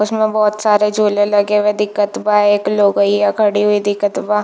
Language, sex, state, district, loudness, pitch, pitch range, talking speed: Hindi, female, Chhattisgarh, Bilaspur, -14 LUFS, 210 Hz, 205-210 Hz, 190 wpm